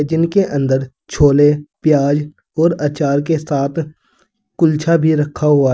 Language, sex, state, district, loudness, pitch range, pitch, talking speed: Hindi, male, Uttar Pradesh, Saharanpur, -15 LUFS, 140-165 Hz, 150 Hz, 135 wpm